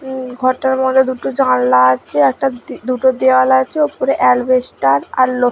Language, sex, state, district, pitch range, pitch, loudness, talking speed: Bengali, female, West Bengal, Dakshin Dinajpur, 245-260 Hz, 255 Hz, -14 LUFS, 165 wpm